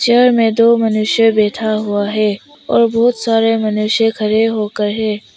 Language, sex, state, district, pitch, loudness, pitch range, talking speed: Hindi, female, Arunachal Pradesh, Papum Pare, 220 Hz, -14 LUFS, 215-230 Hz, 155 wpm